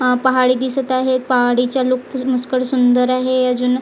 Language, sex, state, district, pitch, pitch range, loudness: Marathi, female, Maharashtra, Gondia, 255 Hz, 250-260 Hz, -16 LUFS